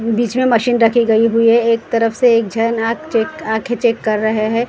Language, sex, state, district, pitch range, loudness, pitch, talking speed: Hindi, female, Maharashtra, Gondia, 225-235 Hz, -15 LUFS, 230 Hz, 245 wpm